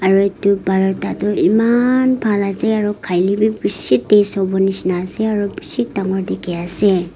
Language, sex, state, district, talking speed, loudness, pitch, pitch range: Nagamese, female, Nagaland, Kohima, 170 wpm, -16 LUFS, 200 Hz, 190-215 Hz